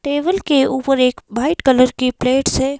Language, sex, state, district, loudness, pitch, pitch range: Hindi, female, Himachal Pradesh, Shimla, -16 LUFS, 265 Hz, 255-285 Hz